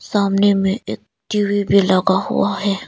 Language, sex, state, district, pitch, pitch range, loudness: Hindi, female, Arunachal Pradesh, Lower Dibang Valley, 200 Hz, 190-205 Hz, -17 LUFS